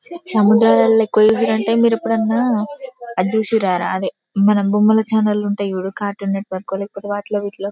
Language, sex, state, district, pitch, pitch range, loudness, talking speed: Telugu, female, Telangana, Karimnagar, 210 Hz, 200-225 Hz, -17 LUFS, 130 wpm